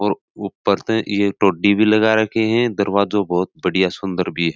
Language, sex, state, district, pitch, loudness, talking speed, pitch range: Marwari, male, Rajasthan, Churu, 100 Hz, -18 LUFS, 195 wpm, 95-110 Hz